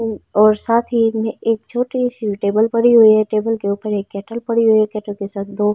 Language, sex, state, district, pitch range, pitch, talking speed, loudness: Hindi, female, Delhi, New Delhi, 210-230 Hz, 220 Hz, 240 wpm, -17 LUFS